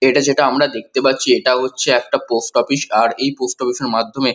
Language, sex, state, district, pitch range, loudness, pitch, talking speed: Bengali, male, West Bengal, Kolkata, 120-135 Hz, -16 LUFS, 130 Hz, 220 wpm